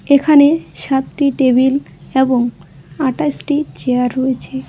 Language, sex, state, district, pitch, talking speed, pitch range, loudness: Bengali, female, West Bengal, Cooch Behar, 265 Hz, 90 wpm, 250-285 Hz, -15 LUFS